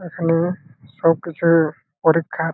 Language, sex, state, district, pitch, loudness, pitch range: Bengali, male, West Bengal, Malda, 165 Hz, -19 LUFS, 155-165 Hz